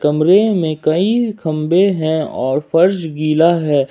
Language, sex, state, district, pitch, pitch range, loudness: Hindi, male, Jharkhand, Ranchi, 160 Hz, 155-185 Hz, -15 LUFS